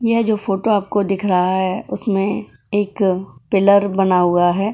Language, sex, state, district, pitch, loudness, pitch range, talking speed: Hindi, female, Goa, North and South Goa, 195 Hz, -17 LUFS, 185-205 Hz, 165 wpm